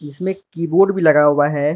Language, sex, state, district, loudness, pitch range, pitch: Hindi, male, Arunachal Pradesh, Lower Dibang Valley, -16 LUFS, 145-190 Hz, 160 Hz